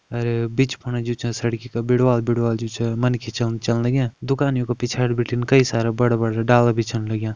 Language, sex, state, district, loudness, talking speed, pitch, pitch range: Kumaoni, male, Uttarakhand, Uttarkashi, -21 LUFS, 230 wpm, 120 Hz, 115-125 Hz